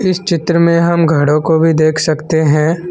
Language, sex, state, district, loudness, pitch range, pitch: Hindi, male, Assam, Kamrup Metropolitan, -12 LUFS, 155-170 Hz, 160 Hz